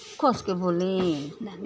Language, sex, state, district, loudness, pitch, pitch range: Bhojpuri, female, Uttar Pradesh, Ghazipur, -26 LUFS, 190 Hz, 175-220 Hz